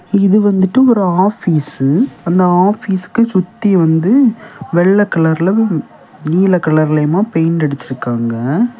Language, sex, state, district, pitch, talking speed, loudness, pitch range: Tamil, male, Tamil Nadu, Kanyakumari, 180 Hz, 100 wpm, -13 LUFS, 160-205 Hz